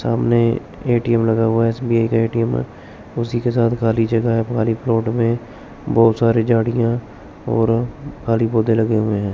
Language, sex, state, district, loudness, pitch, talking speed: Hindi, male, Chandigarh, Chandigarh, -18 LUFS, 115 Hz, 165 wpm